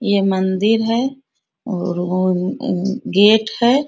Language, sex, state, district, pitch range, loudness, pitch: Hindi, female, Bihar, Bhagalpur, 185-230 Hz, -17 LUFS, 205 Hz